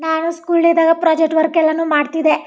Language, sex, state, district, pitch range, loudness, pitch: Kannada, female, Karnataka, Chamarajanagar, 320-330 Hz, -15 LUFS, 320 Hz